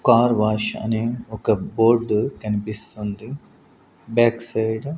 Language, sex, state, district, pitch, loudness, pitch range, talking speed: Telugu, male, Andhra Pradesh, Sri Satya Sai, 110 Hz, -21 LUFS, 110-120 Hz, 110 wpm